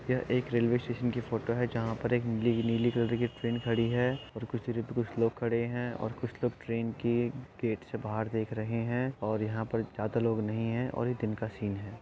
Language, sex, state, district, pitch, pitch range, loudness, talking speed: Hindi, male, Uttar Pradesh, Etah, 115 Hz, 115-120 Hz, -32 LUFS, 230 wpm